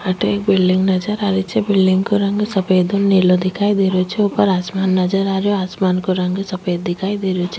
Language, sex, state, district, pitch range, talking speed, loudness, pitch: Rajasthani, female, Rajasthan, Nagaur, 185-200 Hz, 235 wpm, -17 LUFS, 190 Hz